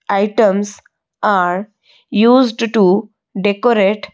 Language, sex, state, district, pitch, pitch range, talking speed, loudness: English, female, Odisha, Malkangiri, 205 Hz, 195-225 Hz, 70 wpm, -14 LUFS